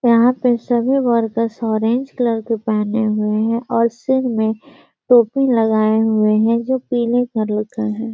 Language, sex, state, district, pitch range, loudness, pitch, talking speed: Hindi, female, Bihar, Gaya, 220-245 Hz, -17 LUFS, 230 Hz, 155 wpm